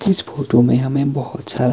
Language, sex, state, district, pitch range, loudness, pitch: Hindi, male, Himachal Pradesh, Shimla, 125-145 Hz, -18 LUFS, 135 Hz